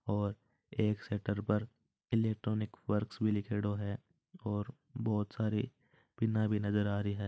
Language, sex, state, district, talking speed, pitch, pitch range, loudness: Marwari, male, Rajasthan, Churu, 150 wpm, 105 Hz, 105-115 Hz, -36 LUFS